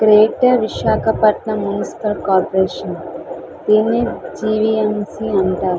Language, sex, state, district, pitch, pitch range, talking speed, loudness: Telugu, female, Andhra Pradesh, Visakhapatnam, 215 Hz, 200-220 Hz, 70 wpm, -17 LUFS